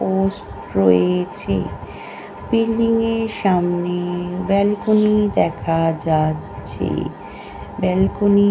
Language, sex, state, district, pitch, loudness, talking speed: Bengali, female, West Bengal, North 24 Parganas, 180 Hz, -19 LUFS, 70 wpm